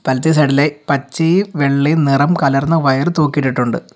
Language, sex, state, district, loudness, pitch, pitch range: Malayalam, male, Kerala, Kollam, -14 LUFS, 145 Hz, 135-160 Hz